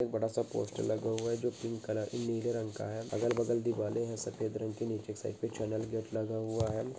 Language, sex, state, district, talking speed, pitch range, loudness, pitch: Hindi, male, West Bengal, North 24 Parganas, 240 wpm, 110-115 Hz, -36 LUFS, 110 Hz